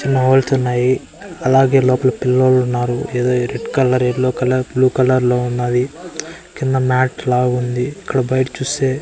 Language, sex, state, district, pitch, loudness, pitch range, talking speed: Telugu, male, Andhra Pradesh, Annamaya, 130 Hz, -16 LUFS, 125-135 Hz, 145 wpm